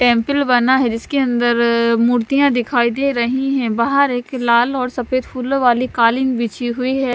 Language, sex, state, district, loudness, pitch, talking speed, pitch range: Hindi, male, Punjab, Fazilka, -16 LUFS, 250 Hz, 175 wpm, 235-265 Hz